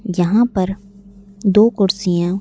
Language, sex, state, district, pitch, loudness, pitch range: Hindi, female, Madhya Pradesh, Bhopal, 195 Hz, -16 LUFS, 185-200 Hz